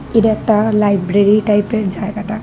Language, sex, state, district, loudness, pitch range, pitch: Bengali, female, Tripura, West Tripura, -14 LUFS, 205-215 Hz, 210 Hz